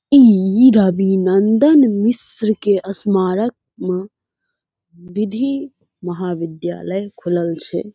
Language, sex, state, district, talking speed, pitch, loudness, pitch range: Maithili, female, Bihar, Saharsa, 75 wpm, 200 Hz, -16 LUFS, 185-230 Hz